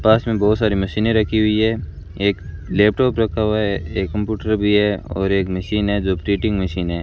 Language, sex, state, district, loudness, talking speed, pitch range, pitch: Hindi, male, Rajasthan, Bikaner, -19 LUFS, 215 wpm, 95-110 Hz, 105 Hz